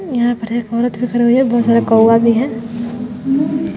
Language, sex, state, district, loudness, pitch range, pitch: Hindi, female, Bihar, West Champaran, -15 LUFS, 230-245 Hz, 235 Hz